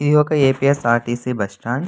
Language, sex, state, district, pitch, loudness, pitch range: Telugu, male, Andhra Pradesh, Anantapur, 130 Hz, -18 LUFS, 120-145 Hz